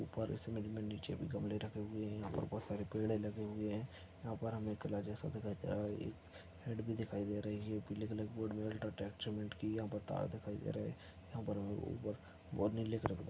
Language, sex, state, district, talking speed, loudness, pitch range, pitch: Hindi, male, Chhattisgarh, Bastar, 205 wpm, -43 LUFS, 105-110 Hz, 105 Hz